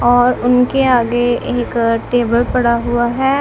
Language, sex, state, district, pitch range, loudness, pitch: Hindi, female, Punjab, Kapurthala, 235-250 Hz, -14 LUFS, 245 Hz